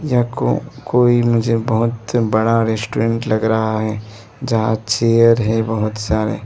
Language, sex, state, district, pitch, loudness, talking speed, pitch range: Hindi, male, Arunachal Pradesh, Lower Dibang Valley, 110 Hz, -17 LUFS, 130 wpm, 110-115 Hz